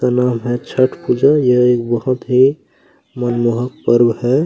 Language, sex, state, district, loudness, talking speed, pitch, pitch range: Hindi, male, Chhattisgarh, Kabirdham, -15 LUFS, 160 wpm, 125 Hz, 120-130 Hz